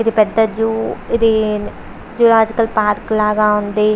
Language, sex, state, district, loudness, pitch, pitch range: Telugu, female, Andhra Pradesh, Visakhapatnam, -15 LUFS, 220 Hz, 210-225 Hz